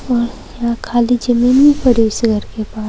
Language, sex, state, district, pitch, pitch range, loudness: Hindi, female, Uttar Pradesh, Saharanpur, 240 Hz, 225-245 Hz, -14 LUFS